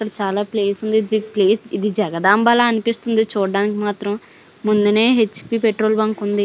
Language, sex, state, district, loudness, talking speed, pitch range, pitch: Telugu, female, Andhra Pradesh, Visakhapatnam, -18 LUFS, 150 wpm, 205-220 Hz, 215 Hz